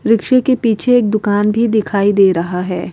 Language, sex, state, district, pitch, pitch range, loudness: Hindi, female, Bihar, Vaishali, 215 Hz, 200-230 Hz, -14 LUFS